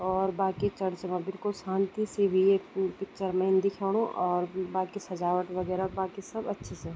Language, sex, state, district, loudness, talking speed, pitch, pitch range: Garhwali, female, Uttarakhand, Tehri Garhwal, -30 LUFS, 180 wpm, 190 Hz, 185-195 Hz